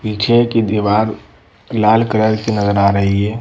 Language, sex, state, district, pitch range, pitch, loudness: Hindi, female, Madhya Pradesh, Bhopal, 100-110 Hz, 105 Hz, -15 LUFS